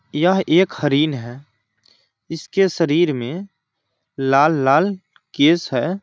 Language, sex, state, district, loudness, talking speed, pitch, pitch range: Hindi, male, Bihar, East Champaran, -18 LUFS, 100 wpm, 155 Hz, 135-175 Hz